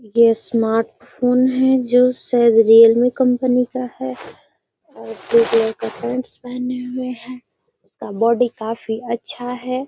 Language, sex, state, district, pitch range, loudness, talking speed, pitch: Hindi, female, Bihar, Gaya, 230-250 Hz, -17 LUFS, 125 wpm, 245 Hz